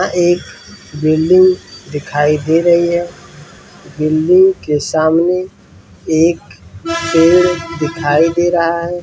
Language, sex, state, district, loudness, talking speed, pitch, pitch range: Hindi, male, Bihar, Saran, -13 LUFS, 115 wpm, 165 Hz, 150-175 Hz